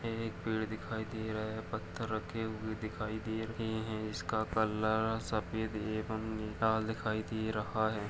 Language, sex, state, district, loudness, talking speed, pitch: Hindi, male, Uttar Pradesh, Etah, -36 LUFS, 170 wpm, 110 Hz